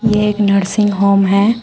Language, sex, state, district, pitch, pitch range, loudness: Hindi, female, Uttar Pradesh, Shamli, 205 Hz, 200-210 Hz, -13 LUFS